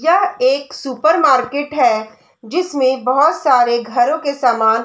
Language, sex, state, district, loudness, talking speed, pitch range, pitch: Hindi, female, Chhattisgarh, Bilaspur, -15 LUFS, 135 wpm, 245-305 Hz, 265 Hz